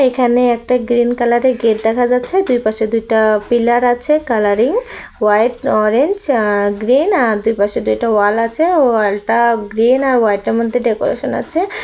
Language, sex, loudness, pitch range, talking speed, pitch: Bengali, female, -14 LUFS, 220-250 Hz, 165 wpm, 235 Hz